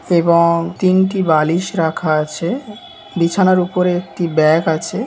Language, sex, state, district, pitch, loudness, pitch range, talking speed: Bengali, male, West Bengal, Dakshin Dinajpur, 170 Hz, -15 LUFS, 165-185 Hz, 120 wpm